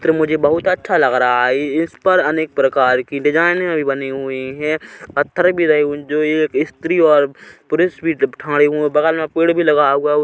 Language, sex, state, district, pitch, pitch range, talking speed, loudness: Hindi, male, Chhattisgarh, Kabirdham, 155 Hz, 145-165 Hz, 205 wpm, -16 LUFS